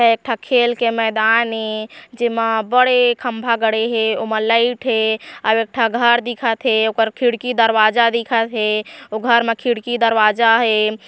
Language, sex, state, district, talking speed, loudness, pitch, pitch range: Chhattisgarhi, female, Chhattisgarh, Korba, 165 wpm, -16 LUFS, 230 Hz, 220-240 Hz